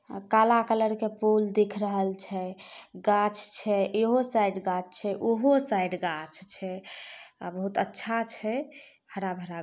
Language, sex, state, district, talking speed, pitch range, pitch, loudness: Maithili, female, Bihar, Samastipur, 155 wpm, 190-225 Hz, 205 Hz, -28 LUFS